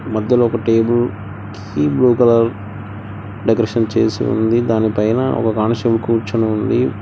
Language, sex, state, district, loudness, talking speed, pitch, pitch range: Telugu, male, Telangana, Hyderabad, -16 LUFS, 110 wpm, 110 Hz, 105-115 Hz